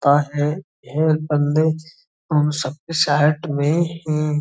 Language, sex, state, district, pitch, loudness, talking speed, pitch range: Hindi, male, Uttar Pradesh, Budaun, 150 Hz, -20 LUFS, 110 wpm, 145-155 Hz